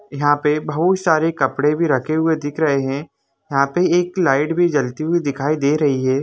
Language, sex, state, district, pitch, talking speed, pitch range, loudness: Hindi, male, Jharkhand, Jamtara, 150 Hz, 210 wpm, 140-165 Hz, -18 LUFS